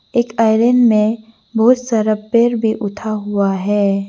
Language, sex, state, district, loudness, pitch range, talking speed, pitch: Hindi, female, Arunachal Pradesh, Lower Dibang Valley, -15 LUFS, 205-235 Hz, 145 wpm, 220 Hz